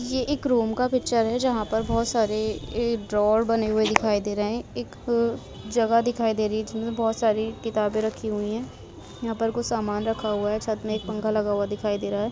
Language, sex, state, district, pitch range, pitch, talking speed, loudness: Hindi, female, Bihar, East Champaran, 215-230 Hz, 220 Hz, 235 wpm, -25 LUFS